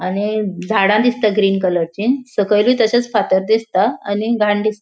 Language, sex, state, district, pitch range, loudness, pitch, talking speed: Konkani, female, Goa, North and South Goa, 195-225 Hz, -16 LUFS, 210 Hz, 160 wpm